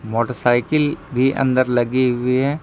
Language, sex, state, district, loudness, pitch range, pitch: Hindi, male, Jharkhand, Ranchi, -18 LUFS, 120-135 Hz, 130 Hz